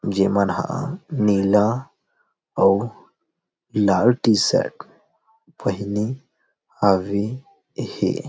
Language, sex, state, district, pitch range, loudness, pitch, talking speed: Chhattisgarhi, male, Chhattisgarh, Rajnandgaon, 100-145 Hz, -21 LUFS, 105 Hz, 70 wpm